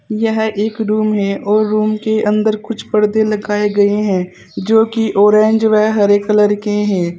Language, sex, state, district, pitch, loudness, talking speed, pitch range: Hindi, female, Uttar Pradesh, Saharanpur, 215 Hz, -14 LUFS, 175 wpm, 205-220 Hz